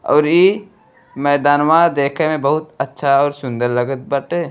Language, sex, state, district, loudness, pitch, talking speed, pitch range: Bhojpuri, male, Uttar Pradesh, Deoria, -16 LUFS, 145 Hz, 145 wpm, 140-165 Hz